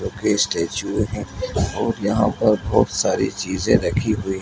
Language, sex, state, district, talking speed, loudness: Hindi, male, Uttar Pradesh, Etah, 160 wpm, -21 LUFS